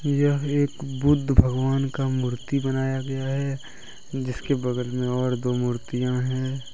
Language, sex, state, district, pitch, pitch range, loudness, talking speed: Hindi, male, Jharkhand, Deoghar, 130 Hz, 125-140 Hz, -25 LUFS, 140 wpm